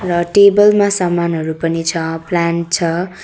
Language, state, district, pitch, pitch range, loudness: Nepali, West Bengal, Darjeeling, 170 Hz, 165-185 Hz, -14 LUFS